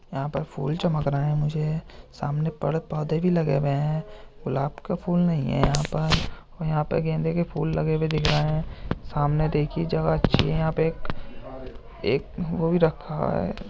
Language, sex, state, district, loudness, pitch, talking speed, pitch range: Hindi, male, Uttar Pradesh, Jyotiba Phule Nagar, -25 LUFS, 155 Hz, 195 wpm, 140-165 Hz